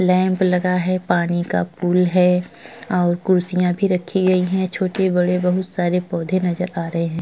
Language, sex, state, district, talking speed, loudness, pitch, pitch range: Hindi, male, Uttar Pradesh, Jyotiba Phule Nagar, 175 wpm, -19 LUFS, 180 Hz, 175-185 Hz